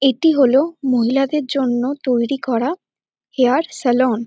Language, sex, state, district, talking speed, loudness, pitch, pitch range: Bengali, female, West Bengal, North 24 Parganas, 125 wpm, -17 LUFS, 265 Hz, 250-280 Hz